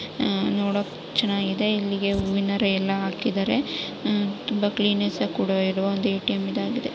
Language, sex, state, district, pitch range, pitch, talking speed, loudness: Kannada, female, Karnataka, Raichur, 195-210 Hz, 200 Hz, 130 wpm, -24 LUFS